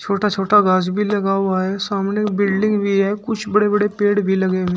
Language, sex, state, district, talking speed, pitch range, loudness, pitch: Hindi, male, Uttar Pradesh, Shamli, 240 wpm, 195-210 Hz, -18 LUFS, 200 Hz